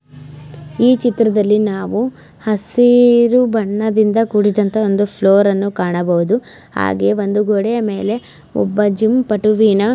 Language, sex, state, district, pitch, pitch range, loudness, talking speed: Kannada, female, Karnataka, Belgaum, 210 Hz, 195-225 Hz, -15 LUFS, 110 wpm